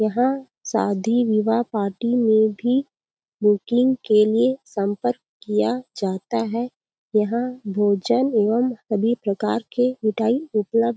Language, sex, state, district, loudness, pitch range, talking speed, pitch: Hindi, female, Chhattisgarh, Balrampur, -21 LUFS, 210-245 Hz, 115 wpm, 230 Hz